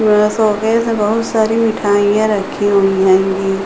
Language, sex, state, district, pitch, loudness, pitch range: Hindi, female, Uttar Pradesh, Hamirpur, 210 Hz, -14 LUFS, 195-220 Hz